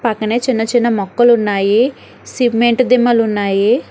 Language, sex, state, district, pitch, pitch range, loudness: Telugu, female, Telangana, Hyderabad, 235 Hz, 210-240 Hz, -14 LUFS